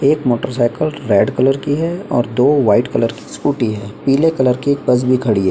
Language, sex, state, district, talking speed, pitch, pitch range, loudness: Hindi, male, Maharashtra, Chandrapur, 230 wpm, 130 Hz, 120-145 Hz, -16 LUFS